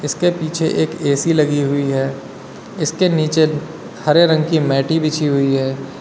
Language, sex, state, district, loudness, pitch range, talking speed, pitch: Hindi, male, Uttar Pradesh, Lalitpur, -17 LUFS, 140-160 Hz, 160 wpm, 155 Hz